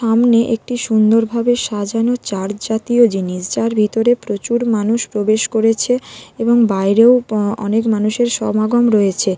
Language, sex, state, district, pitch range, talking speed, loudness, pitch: Bengali, female, West Bengal, North 24 Parganas, 210-235 Hz, 130 wpm, -15 LUFS, 225 Hz